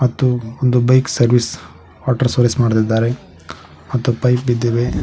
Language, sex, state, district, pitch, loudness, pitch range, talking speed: Kannada, male, Karnataka, Koppal, 120 Hz, -16 LUFS, 110-125 Hz, 120 wpm